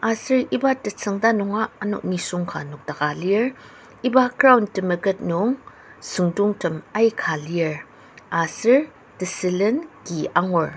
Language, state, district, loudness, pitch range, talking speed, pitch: Ao, Nagaland, Dimapur, -22 LUFS, 170-230 Hz, 110 wpm, 200 Hz